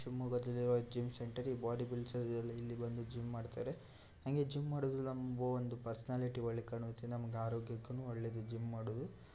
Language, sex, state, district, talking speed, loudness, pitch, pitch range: Kannada, male, Karnataka, Shimoga, 150 wpm, -42 LUFS, 120 Hz, 115-125 Hz